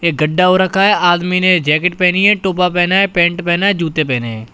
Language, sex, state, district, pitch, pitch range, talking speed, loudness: Hindi, male, Uttar Pradesh, Shamli, 180 Hz, 170-185 Hz, 250 wpm, -13 LUFS